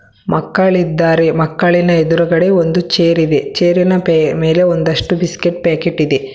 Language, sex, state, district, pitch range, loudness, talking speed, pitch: Kannada, female, Karnataka, Bangalore, 160-175 Hz, -13 LUFS, 105 wpm, 170 Hz